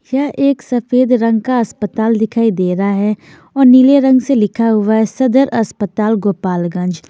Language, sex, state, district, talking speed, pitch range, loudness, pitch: Hindi, female, Punjab, Fazilka, 170 wpm, 205-255 Hz, -13 LUFS, 225 Hz